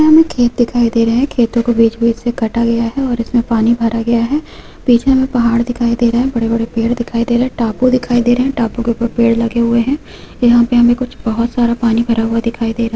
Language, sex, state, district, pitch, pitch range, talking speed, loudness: Hindi, female, West Bengal, Purulia, 235 Hz, 230-245 Hz, 280 wpm, -14 LUFS